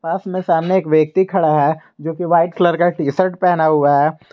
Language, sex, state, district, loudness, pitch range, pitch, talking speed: Hindi, male, Jharkhand, Garhwa, -16 LUFS, 155-180 Hz, 165 Hz, 235 wpm